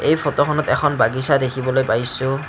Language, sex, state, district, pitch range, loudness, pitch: Assamese, male, Assam, Kamrup Metropolitan, 130-145 Hz, -18 LUFS, 135 Hz